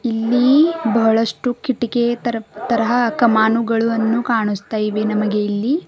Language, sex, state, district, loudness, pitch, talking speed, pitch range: Kannada, female, Karnataka, Bidar, -17 LUFS, 230 Hz, 100 wpm, 220-240 Hz